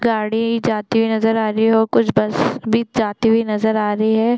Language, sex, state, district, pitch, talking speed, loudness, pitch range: Hindi, female, Chhattisgarh, Korba, 225 Hz, 245 wpm, -17 LUFS, 220-230 Hz